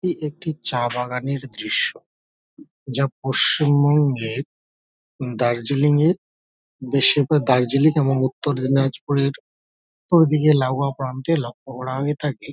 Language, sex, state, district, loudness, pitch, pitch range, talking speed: Bengali, male, West Bengal, Dakshin Dinajpur, -20 LUFS, 135 Hz, 125-145 Hz, 110 wpm